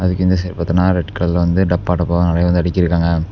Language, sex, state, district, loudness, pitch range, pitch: Tamil, male, Tamil Nadu, Namakkal, -16 LUFS, 85-90 Hz, 90 Hz